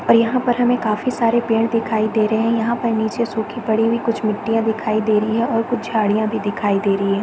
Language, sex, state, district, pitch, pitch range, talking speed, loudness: Hindi, female, Chhattisgarh, Raigarh, 225 Hz, 215-230 Hz, 255 wpm, -19 LUFS